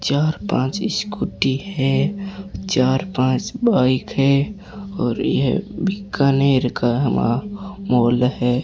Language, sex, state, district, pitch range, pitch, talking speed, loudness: Hindi, female, Rajasthan, Bikaner, 130-200 Hz, 140 Hz, 105 wpm, -19 LUFS